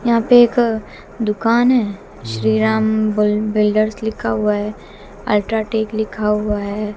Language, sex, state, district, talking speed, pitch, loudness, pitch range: Hindi, female, Haryana, Jhajjar, 140 wpm, 215 Hz, -17 LUFS, 210-220 Hz